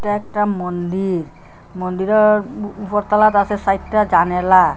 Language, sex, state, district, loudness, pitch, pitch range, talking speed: Bengali, female, Assam, Hailakandi, -17 LUFS, 200 Hz, 185-210 Hz, 100 wpm